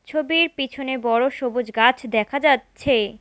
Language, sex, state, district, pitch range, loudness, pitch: Bengali, female, West Bengal, Alipurduar, 235-280 Hz, -20 LUFS, 260 Hz